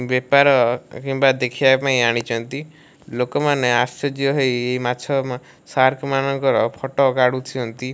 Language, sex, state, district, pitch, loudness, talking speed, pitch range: Odia, male, Odisha, Malkangiri, 130 Hz, -19 LUFS, 100 wpm, 125-140 Hz